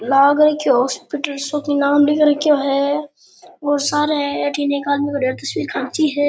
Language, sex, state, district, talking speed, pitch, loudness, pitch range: Rajasthani, male, Rajasthan, Churu, 190 wpm, 290 Hz, -17 LUFS, 280-295 Hz